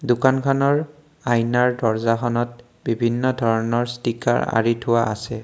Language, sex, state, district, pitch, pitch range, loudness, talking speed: Assamese, male, Assam, Kamrup Metropolitan, 120 Hz, 115-130 Hz, -21 LUFS, 100 wpm